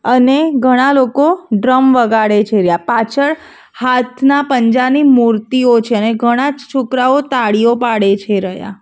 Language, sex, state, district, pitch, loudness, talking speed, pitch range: Gujarati, female, Gujarat, Valsad, 250 Hz, -12 LUFS, 145 wpm, 225-270 Hz